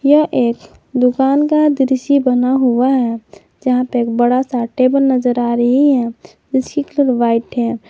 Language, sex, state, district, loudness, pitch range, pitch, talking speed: Hindi, female, Jharkhand, Garhwa, -15 LUFS, 240-270 Hz, 255 Hz, 165 wpm